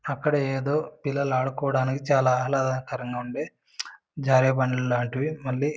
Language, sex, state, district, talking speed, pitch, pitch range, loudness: Telugu, male, Andhra Pradesh, Anantapur, 125 wpm, 135 Hz, 130-140 Hz, -25 LUFS